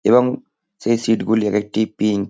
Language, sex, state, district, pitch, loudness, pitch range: Bengali, male, West Bengal, Kolkata, 110 Hz, -19 LUFS, 105-115 Hz